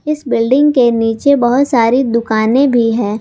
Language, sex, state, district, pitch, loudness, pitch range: Hindi, female, Jharkhand, Garhwa, 240 Hz, -12 LUFS, 230-275 Hz